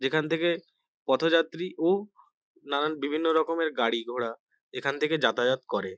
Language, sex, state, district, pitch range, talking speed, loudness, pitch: Bengali, male, West Bengal, North 24 Parganas, 140-165 Hz, 120 wpm, -27 LUFS, 160 Hz